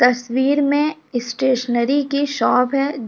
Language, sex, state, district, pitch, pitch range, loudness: Hindi, female, Bihar, Samastipur, 265 Hz, 245-285 Hz, -18 LUFS